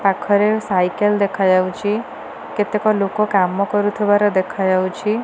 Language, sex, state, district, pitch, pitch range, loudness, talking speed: Odia, female, Odisha, Nuapada, 205 Hz, 190-210 Hz, -18 LUFS, 105 wpm